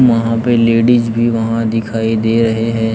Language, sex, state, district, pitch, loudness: Hindi, male, Maharashtra, Gondia, 115 Hz, -14 LUFS